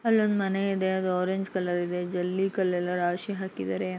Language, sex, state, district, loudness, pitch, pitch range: Kannada, female, Karnataka, Shimoga, -28 LUFS, 185 Hz, 180-195 Hz